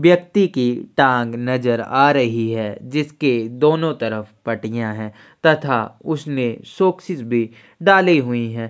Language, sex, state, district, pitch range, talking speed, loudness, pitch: Hindi, male, Chhattisgarh, Sukma, 115-155 Hz, 130 wpm, -19 LUFS, 125 Hz